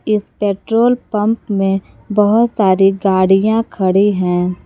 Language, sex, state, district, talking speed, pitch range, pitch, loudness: Hindi, female, Jharkhand, Palamu, 115 wpm, 190-215 Hz, 205 Hz, -14 LUFS